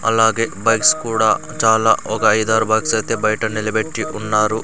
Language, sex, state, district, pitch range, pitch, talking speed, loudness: Telugu, male, Andhra Pradesh, Sri Satya Sai, 110-115 Hz, 110 Hz, 140 wpm, -17 LUFS